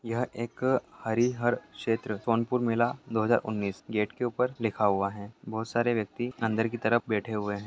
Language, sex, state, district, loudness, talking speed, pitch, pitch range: Hindi, male, Bihar, Sitamarhi, -29 LUFS, 190 wpm, 115 Hz, 110-120 Hz